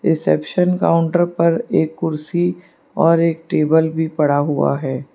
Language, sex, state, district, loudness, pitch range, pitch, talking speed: Hindi, female, Gujarat, Valsad, -17 LUFS, 150-175 Hz, 165 Hz, 140 wpm